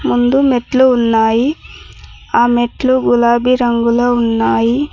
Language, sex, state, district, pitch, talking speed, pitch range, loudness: Telugu, female, Telangana, Mahabubabad, 240 Hz, 95 wpm, 235-255 Hz, -13 LUFS